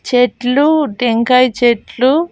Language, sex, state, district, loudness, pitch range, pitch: Telugu, female, Andhra Pradesh, Annamaya, -13 LUFS, 240-275 Hz, 250 Hz